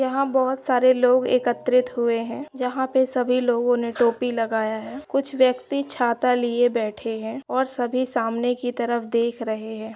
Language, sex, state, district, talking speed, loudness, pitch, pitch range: Hindi, female, Bihar, Saran, 175 wpm, -22 LUFS, 245 Hz, 235-255 Hz